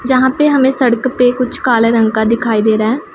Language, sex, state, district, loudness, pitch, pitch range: Hindi, female, Punjab, Pathankot, -12 LUFS, 245 Hz, 230-260 Hz